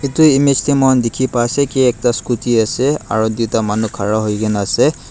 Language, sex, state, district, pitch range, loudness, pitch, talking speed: Nagamese, male, Nagaland, Dimapur, 110-135 Hz, -15 LUFS, 120 Hz, 190 wpm